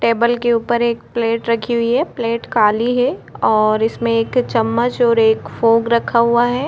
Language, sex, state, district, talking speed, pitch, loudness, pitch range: Hindi, female, Chhattisgarh, Korba, 195 wpm, 235 Hz, -16 LUFS, 230-240 Hz